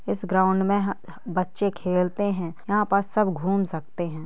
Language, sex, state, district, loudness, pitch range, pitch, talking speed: Hindi, female, Jharkhand, Sahebganj, -25 LUFS, 180-200 Hz, 190 Hz, 185 wpm